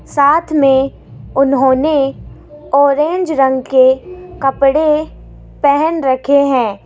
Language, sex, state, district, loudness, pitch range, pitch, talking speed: Hindi, female, Rajasthan, Jaipur, -13 LUFS, 265-300 Hz, 280 Hz, 85 wpm